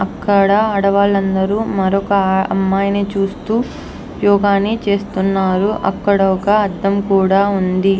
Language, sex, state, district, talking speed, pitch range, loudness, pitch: Telugu, female, Andhra Pradesh, Anantapur, 95 wpm, 195-200 Hz, -15 LUFS, 200 Hz